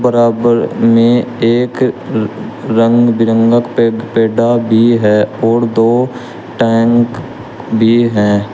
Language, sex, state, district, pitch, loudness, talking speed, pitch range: Hindi, male, Uttar Pradesh, Shamli, 115 Hz, -12 LUFS, 105 wpm, 115-120 Hz